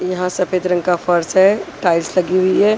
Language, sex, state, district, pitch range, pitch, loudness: Hindi, female, Haryana, Rohtak, 180-185 Hz, 185 Hz, -16 LUFS